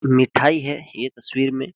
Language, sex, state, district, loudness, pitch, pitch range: Hindi, male, Uttar Pradesh, Jyotiba Phule Nagar, -20 LUFS, 135 Hz, 130-145 Hz